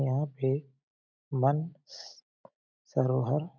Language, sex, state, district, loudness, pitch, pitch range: Hindi, male, Chhattisgarh, Balrampur, -31 LUFS, 135 Hz, 130-145 Hz